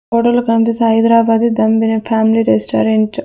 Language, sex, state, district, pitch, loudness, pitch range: Telugu, female, Andhra Pradesh, Sri Satya Sai, 225 Hz, -13 LUFS, 220-230 Hz